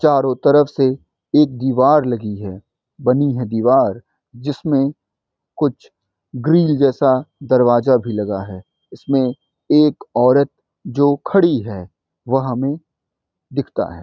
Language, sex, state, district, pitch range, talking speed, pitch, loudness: Hindi, male, Bihar, Muzaffarpur, 120-145 Hz, 125 wpm, 130 Hz, -17 LUFS